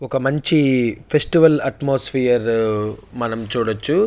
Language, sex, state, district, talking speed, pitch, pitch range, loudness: Telugu, male, Andhra Pradesh, Chittoor, 90 wpm, 130 Hz, 115-145 Hz, -17 LUFS